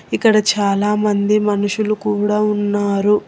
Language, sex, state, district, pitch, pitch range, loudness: Telugu, female, Telangana, Hyderabad, 210 Hz, 205-210 Hz, -16 LUFS